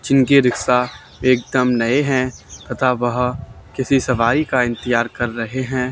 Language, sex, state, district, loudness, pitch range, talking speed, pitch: Hindi, male, Haryana, Charkhi Dadri, -18 LUFS, 120-130 Hz, 140 wpm, 125 Hz